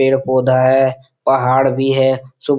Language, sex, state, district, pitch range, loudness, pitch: Hindi, male, Bihar, Supaul, 130-135 Hz, -15 LUFS, 130 Hz